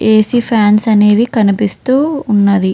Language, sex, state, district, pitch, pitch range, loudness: Telugu, female, Andhra Pradesh, Krishna, 215 Hz, 210-240 Hz, -11 LUFS